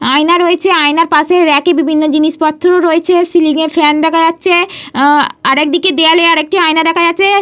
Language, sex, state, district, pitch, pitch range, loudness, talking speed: Bengali, female, Jharkhand, Jamtara, 330 Hz, 305-350 Hz, -10 LUFS, 160 wpm